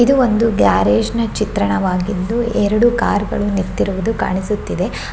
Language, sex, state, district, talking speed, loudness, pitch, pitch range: Kannada, female, Karnataka, Shimoga, 115 wpm, -17 LUFS, 210 Hz, 190-230 Hz